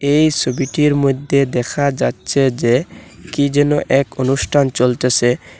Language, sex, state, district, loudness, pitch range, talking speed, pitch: Bengali, male, Assam, Hailakandi, -16 LUFS, 125-145 Hz, 120 wpm, 135 Hz